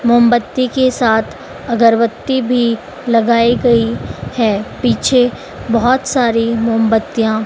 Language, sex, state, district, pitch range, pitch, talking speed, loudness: Hindi, female, Madhya Pradesh, Dhar, 225-245 Hz, 235 Hz, 105 wpm, -14 LUFS